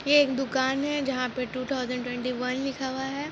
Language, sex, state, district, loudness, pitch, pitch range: Hindi, female, Jharkhand, Jamtara, -28 LUFS, 265 Hz, 250-275 Hz